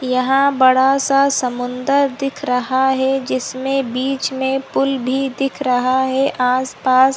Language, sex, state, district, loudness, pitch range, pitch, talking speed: Hindi, female, Chhattisgarh, Korba, -17 LUFS, 255-270 Hz, 265 Hz, 125 wpm